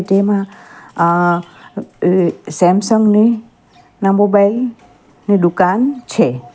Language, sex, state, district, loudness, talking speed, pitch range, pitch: Gujarati, female, Gujarat, Valsad, -14 LUFS, 80 wpm, 175-220 Hz, 195 Hz